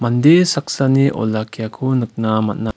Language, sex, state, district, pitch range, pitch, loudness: Garo, male, Meghalaya, West Garo Hills, 110-135 Hz, 120 Hz, -16 LUFS